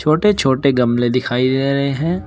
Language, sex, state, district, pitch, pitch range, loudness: Hindi, male, Uttar Pradesh, Shamli, 135 Hz, 125-155 Hz, -16 LUFS